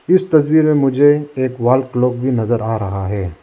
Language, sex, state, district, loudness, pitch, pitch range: Hindi, male, Arunachal Pradesh, Lower Dibang Valley, -15 LUFS, 130 Hz, 115-145 Hz